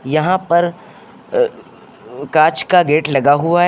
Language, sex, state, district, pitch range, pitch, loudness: Hindi, male, Uttar Pradesh, Lucknow, 150-180 Hz, 170 Hz, -15 LUFS